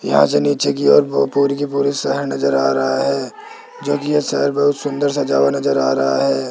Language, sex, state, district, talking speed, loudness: Hindi, male, Rajasthan, Jaipur, 220 wpm, -17 LUFS